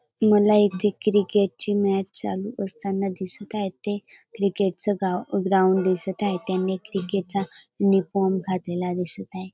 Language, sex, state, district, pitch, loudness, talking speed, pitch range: Marathi, female, Maharashtra, Dhule, 195 Hz, -24 LUFS, 130 wpm, 185-205 Hz